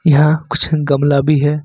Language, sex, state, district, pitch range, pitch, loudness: Hindi, male, Jharkhand, Ranchi, 145-155 Hz, 150 Hz, -14 LUFS